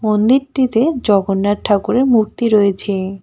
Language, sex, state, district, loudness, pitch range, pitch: Bengali, female, West Bengal, Cooch Behar, -15 LUFS, 200-245 Hz, 215 Hz